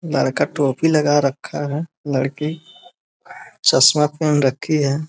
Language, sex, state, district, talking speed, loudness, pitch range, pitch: Hindi, male, Bihar, East Champaran, 130 wpm, -18 LUFS, 140-155 Hz, 150 Hz